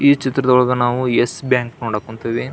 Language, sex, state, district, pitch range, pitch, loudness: Kannada, male, Karnataka, Belgaum, 120-130 Hz, 125 Hz, -17 LUFS